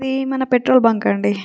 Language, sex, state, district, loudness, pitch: Telugu, female, Telangana, Nalgonda, -17 LUFS, 250 Hz